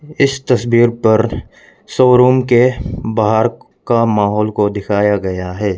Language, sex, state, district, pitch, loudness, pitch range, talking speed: Hindi, male, Arunachal Pradesh, Lower Dibang Valley, 115 Hz, -14 LUFS, 105-125 Hz, 125 wpm